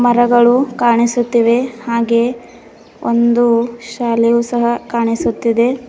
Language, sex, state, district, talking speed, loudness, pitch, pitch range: Kannada, female, Karnataka, Bidar, 70 wpm, -14 LUFS, 235 Hz, 235-240 Hz